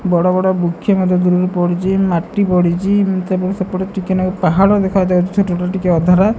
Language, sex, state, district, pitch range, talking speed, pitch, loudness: Odia, female, Odisha, Malkangiri, 180-190 Hz, 180 wpm, 185 Hz, -15 LUFS